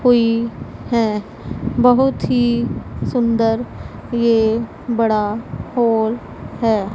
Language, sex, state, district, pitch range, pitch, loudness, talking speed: Hindi, female, Punjab, Pathankot, 210-235 Hz, 225 Hz, -18 LUFS, 80 wpm